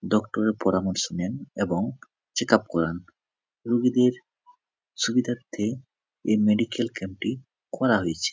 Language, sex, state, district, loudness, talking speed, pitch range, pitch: Bengali, male, West Bengal, Jhargram, -25 LUFS, 115 wpm, 95-125 Hz, 115 Hz